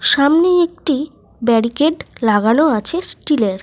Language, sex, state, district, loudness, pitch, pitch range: Bengali, female, Jharkhand, Sahebganj, -15 LUFS, 285 Hz, 230-320 Hz